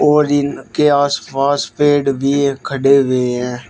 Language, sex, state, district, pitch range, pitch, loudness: Hindi, male, Uttar Pradesh, Shamli, 135-145 Hz, 140 Hz, -15 LUFS